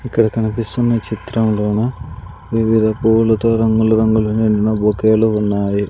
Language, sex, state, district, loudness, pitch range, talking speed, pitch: Telugu, male, Andhra Pradesh, Sri Satya Sai, -16 LUFS, 105-115 Hz, 100 wpm, 110 Hz